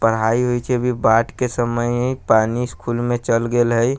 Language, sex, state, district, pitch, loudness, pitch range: Maithili, male, Bihar, Sitamarhi, 120 Hz, -19 LUFS, 115-125 Hz